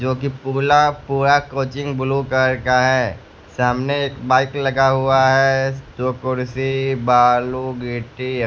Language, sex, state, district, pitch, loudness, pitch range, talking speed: Hindi, male, Bihar, West Champaran, 130 Hz, -18 LUFS, 125-135 Hz, 140 wpm